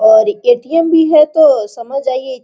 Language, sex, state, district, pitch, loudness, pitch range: Hindi, female, Jharkhand, Sahebganj, 310 Hz, -12 LUFS, 265-330 Hz